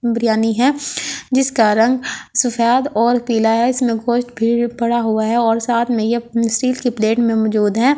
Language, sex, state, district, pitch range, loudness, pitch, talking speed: Hindi, female, Delhi, New Delhi, 225-245 Hz, -16 LUFS, 235 Hz, 175 wpm